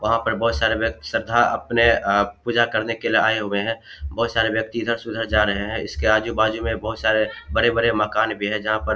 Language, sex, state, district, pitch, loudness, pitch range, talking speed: Hindi, male, Bihar, Samastipur, 110 Hz, -21 LUFS, 105-115 Hz, 240 wpm